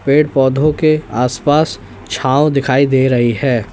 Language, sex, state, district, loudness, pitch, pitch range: Hindi, male, Uttar Pradesh, Lalitpur, -14 LUFS, 135 Hz, 120-150 Hz